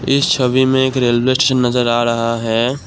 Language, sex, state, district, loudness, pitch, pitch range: Hindi, male, Assam, Kamrup Metropolitan, -15 LUFS, 125 Hz, 120-130 Hz